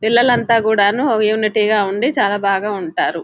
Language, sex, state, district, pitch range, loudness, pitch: Telugu, female, Telangana, Nalgonda, 205-235 Hz, -15 LUFS, 215 Hz